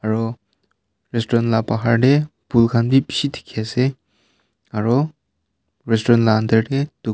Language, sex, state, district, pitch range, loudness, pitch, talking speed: Nagamese, male, Nagaland, Kohima, 110-135 Hz, -19 LUFS, 115 Hz, 120 wpm